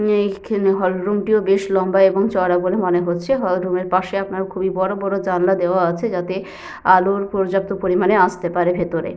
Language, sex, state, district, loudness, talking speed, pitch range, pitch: Bengali, female, Jharkhand, Sahebganj, -18 LUFS, 190 wpm, 180-195 Hz, 190 Hz